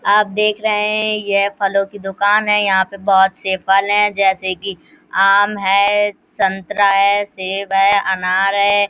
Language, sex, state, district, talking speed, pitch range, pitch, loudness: Hindi, female, Uttar Pradesh, Hamirpur, 160 wpm, 195-205 Hz, 200 Hz, -15 LUFS